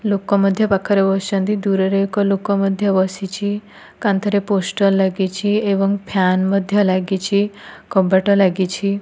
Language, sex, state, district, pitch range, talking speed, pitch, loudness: Odia, female, Odisha, Nuapada, 190-205 Hz, 120 wpm, 195 Hz, -18 LUFS